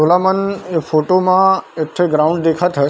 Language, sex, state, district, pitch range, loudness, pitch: Chhattisgarhi, male, Chhattisgarh, Bilaspur, 155-185 Hz, -15 LUFS, 175 Hz